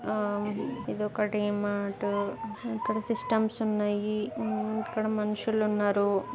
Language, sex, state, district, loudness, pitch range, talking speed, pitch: Telugu, female, Andhra Pradesh, Guntur, -30 LUFS, 205-215 Hz, 105 wpm, 210 Hz